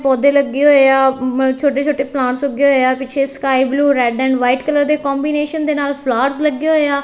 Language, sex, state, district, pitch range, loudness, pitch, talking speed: Punjabi, female, Punjab, Kapurthala, 265-285 Hz, -15 LUFS, 275 Hz, 205 wpm